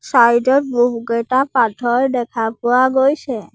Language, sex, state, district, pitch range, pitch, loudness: Assamese, female, Assam, Sonitpur, 235-260 Hz, 245 Hz, -16 LUFS